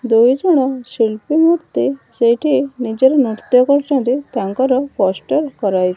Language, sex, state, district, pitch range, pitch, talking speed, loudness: Odia, female, Odisha, Malkangiri, 230-280 Hz, 260 Hz, 120 wpm, -15 LUFS